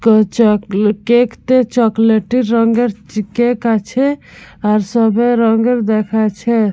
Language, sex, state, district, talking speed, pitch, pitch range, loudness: Bengali, female, West Bengal, Purulia, 115 wpm, 225 Hz, 215-240 Hz, -14 LUFS